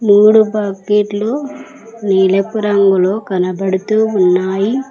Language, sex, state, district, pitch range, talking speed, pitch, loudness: Telugu, female, Telangana, Mahabubabad, 190-220 Hz, 75 wpm, 205 Hz, -13 LUFS